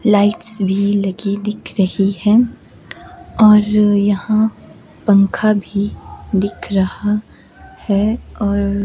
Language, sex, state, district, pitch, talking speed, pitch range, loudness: Hindi, female, Himachal Pradesh, Shimla, 205 Hz, 100 wpm, 200-210 Hz, -16 LUFS